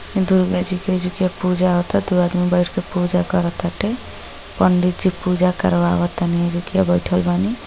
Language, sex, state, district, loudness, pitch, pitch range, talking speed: Hindi, female, Uttar Pradesh, Gorakhpur, -19 LUFS, 180 Hz, 175-185 Hz, 155 wpm